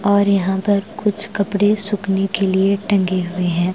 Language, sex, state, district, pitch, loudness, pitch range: Hindi, female, Bihar, Patna, 200 Hz, -18 LUFS, 190-205 Hz